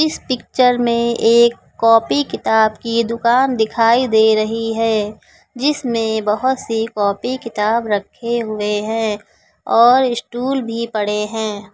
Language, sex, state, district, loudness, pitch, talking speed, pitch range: Hindi, female, Uttar Pradesh, Lucknow, -16 LUFS, 230 Hz, 125 wpm, 215-240 Hz